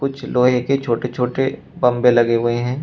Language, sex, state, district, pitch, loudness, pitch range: Hindi, male, Uttar Pradesh, Shamli, 125 Hz, -18 LUFS, 120-135 Hz